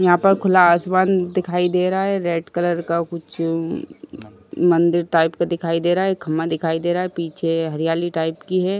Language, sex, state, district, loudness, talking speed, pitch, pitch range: Hindi, female, Uttar Pradesh, Ghazipur, -19 LUFS, 205 wpm, 170 Hz, 165-180 Hz